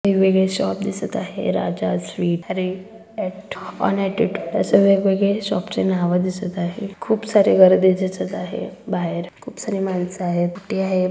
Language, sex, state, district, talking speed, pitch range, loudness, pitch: Marathi, female, Maharashtra, Solapur, 125 wpm, 180-195 Hz, -20 LUFS, 190 Hz